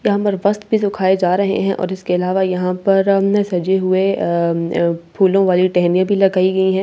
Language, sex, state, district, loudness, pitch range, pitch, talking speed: Hindi, female, Delhi, New Delhi, -16 LUFS, 180-195 Hz, 190 Hz, 230 wpm